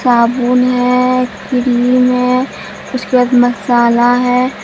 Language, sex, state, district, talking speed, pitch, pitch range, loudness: Hindi, female, Bihar, Katihar, 105 wpm, 250 Hz, 245-250 Hz, -12 LUFS